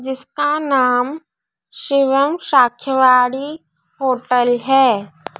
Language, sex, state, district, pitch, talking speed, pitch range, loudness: Hindi, female, Madhya Pradesh, Dhar, 265 Hz, 65 wpm, 250-285 Hz, -16 LUFS